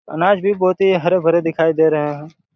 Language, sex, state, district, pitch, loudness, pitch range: Hindi, male, Chhattisgarh, Raigarh, 170 Hz, -16 LUFS, 160-185 Hz